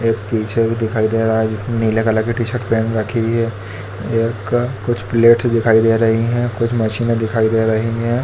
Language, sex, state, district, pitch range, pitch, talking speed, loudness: Hindi, male, Chhattisgarh, Bilaspur, 110-115 Hz, 115 Hz, 220 wpm, -17 LUFS